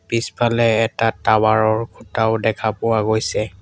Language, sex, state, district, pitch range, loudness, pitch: Assamese, male, Assam, Sonitpur, 110-115 Hz, -18 LUFS, 110 Hz